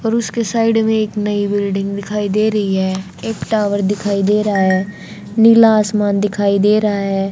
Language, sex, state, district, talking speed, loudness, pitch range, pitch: Hindi, female, Haryana, Charkhi Dadri, 190 wpm, -15 LUFS, 200-215 Hz, 205 Hz